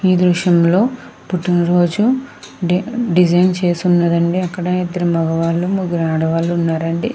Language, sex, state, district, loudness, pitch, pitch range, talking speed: Telugu, female, Andhra Pradesh, Krishna, -16 LUFS, 175 Hz, 170-185 Hz, 135 wpm